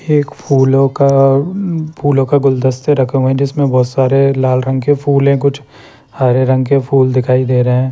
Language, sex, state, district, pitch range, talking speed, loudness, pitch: Hindi, male, Chandigarh, Chandigarh, 130-140 Hz, 195 wpm, -12 LUFS, 135 Hz